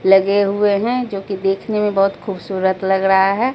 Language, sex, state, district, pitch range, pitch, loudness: Hindi, female, Bihar, Katihar, 195-205 Hz, 195 Hz, -17 LUFS